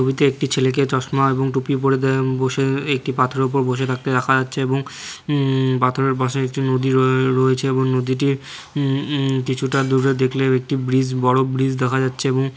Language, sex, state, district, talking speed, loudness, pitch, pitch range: Bengali, male, West Bengal, Jhargram, 180 wpm, -19 LUFS, 130 Hz, 130-135 Hz